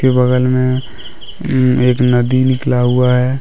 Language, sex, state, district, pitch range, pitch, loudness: Hindi, male, Jharkhand, Deoghar, 125-130 Hz, 125 Hz, -13 LUFS